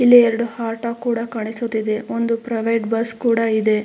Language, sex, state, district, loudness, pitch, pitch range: Kannada, female, Karnataka, Mysore, -20 LUFS, 230 Hz, 225-235 Hz